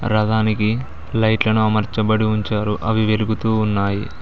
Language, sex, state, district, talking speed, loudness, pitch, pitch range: Telugu, male, Telangana, Mahabubabad, 115 wpm, -19 LUFS, 110 Hz, 105-110 Hz